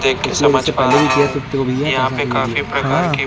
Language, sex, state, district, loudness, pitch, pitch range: Hindi, male, Chhattisgarh, Raipur, -16 LUFS, 135 Hz, 130-145 Hz